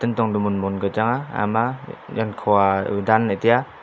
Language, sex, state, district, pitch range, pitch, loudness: Wancho, male, Arunachal Pradesh, Longding, 100-115 Hz, 110 Hz, -21 LUFS